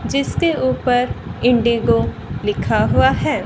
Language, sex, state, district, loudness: Hindi, female, Haryana, Rohtak, -17 LUFS